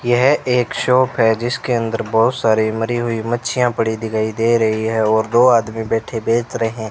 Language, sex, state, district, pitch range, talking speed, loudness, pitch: Hindi, male, Rajasthan, Bikaner, 110-120 Hz, 200 wpm, -17 LUFS, 115 Hz